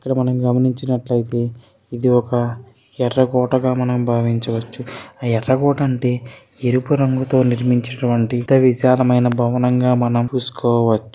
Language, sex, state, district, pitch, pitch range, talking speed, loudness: Telugu, male, Andhra Pradesh, Srikakulam, 125 Hz, 120-130 Hz, 100 wpm, -18 LUFS